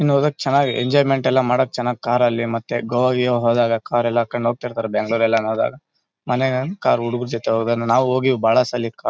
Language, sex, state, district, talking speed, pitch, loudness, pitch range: Kannada, male, Karnataka, Bellary, 190 wpm, 120 Hz, -19 LUFS, 115-130 Hz